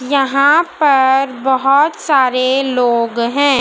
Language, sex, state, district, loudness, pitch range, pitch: Hindi, female, Madhya Pradesh, Dhar, -13 LUFS, 255-285 Hz, 270 Hz